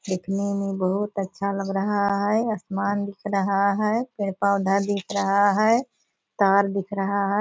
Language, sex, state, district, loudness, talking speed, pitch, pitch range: Hindi, female, Bihar, Purnia, -23 LUFS, 155 wpm, 200 Hz, 195-205 Hz